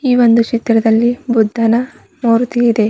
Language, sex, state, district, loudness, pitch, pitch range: Kannada, female, Karnataka, Bidar, -13 LUFS, 235 Hz, 225-245 Hz